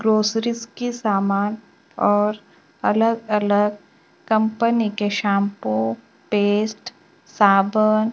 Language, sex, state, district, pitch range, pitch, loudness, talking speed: Hindi, female, Maharashtra, Gondia, 205-220 Hz, 210 Hz, -20 LUFS, 80 wpm